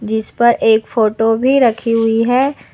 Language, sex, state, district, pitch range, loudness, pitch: Hindi, female, Uttar Pradesh, Lucknow, 220-240 Hz, -14 LUFS, 225 Hz